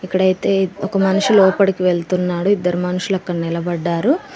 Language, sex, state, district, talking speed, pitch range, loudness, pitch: Telugu, female, Telangana, Mahabubabad, 125 wpm, 180-195 Hz, -17 LUFS, 185 Hz